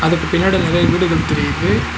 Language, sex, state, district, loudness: Tamil, male, Tamil Nadu, Nilgiris, -15 LUFS